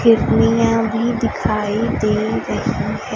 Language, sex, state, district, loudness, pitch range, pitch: Hindi, female, Chhattisgarh, Raipur, -18 LUFS, 215-230 Hz, 225 Hz